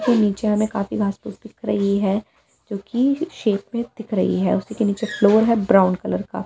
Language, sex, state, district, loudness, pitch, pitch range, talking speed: Hindi, female, Delhi, New Delhi, -20 LUFS, 210 Hz, 200-230 Hz, 205 wpm